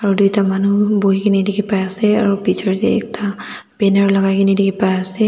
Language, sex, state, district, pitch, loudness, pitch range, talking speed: Nagamese, female, Nagaland, Dimapur, 200 Hz, -16 LUFS, 195-210 Hz, 205 wpm